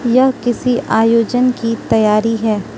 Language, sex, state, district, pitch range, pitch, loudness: Hindi, female, Manipur, Imphal West, 225-245 Hz, 230 Hz, -14 LUFS